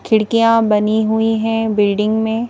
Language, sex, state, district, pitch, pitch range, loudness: Hindi, female, Madhya Pradesh, Bhopal, 220 Hz, 215-225 Hz, -15 LUFS